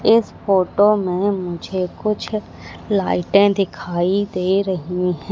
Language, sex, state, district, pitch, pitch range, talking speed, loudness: Hindi, female, Madhya Pradesh, Katni, 195 Hz, 180-205 Hz, 115 wpm, -19 LUFS